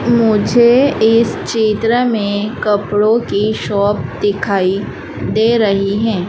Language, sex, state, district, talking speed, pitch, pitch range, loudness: Hindi, female, Madhya Pradesh, Dhar, 105 wpm, 215 Hz, 205-230 Hz, -14 LUFS